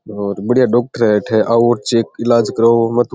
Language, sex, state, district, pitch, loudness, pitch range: Rajasthani, male, Rajasthan, Churu, 115 Hz, -14 LUFS, 110-120 Hz